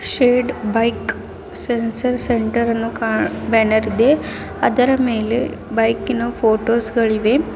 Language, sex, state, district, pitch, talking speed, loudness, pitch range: Kannada, female, Karnataka, Bidar, 230 Hz, 110 wpm, -18 LUFS, 225-245 Hz